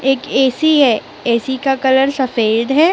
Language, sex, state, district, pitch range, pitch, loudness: Hindi, female, Chhattisgarh, Raipur, 245-275 Hz, 265 Hz, -14 LUFS